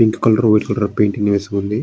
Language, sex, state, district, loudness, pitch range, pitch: Telugu, male, Andhra Pradesh, Srikakulam, -16 LUFS, 100-110 Hz, 105 Hz